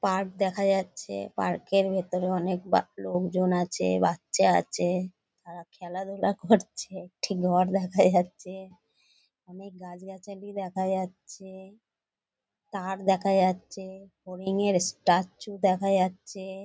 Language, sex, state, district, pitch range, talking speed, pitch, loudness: Bengali, female, West Bengal, North 24 Parganas, 180-195 Hz, 110 wpm, 190 Hz, -27 LUFS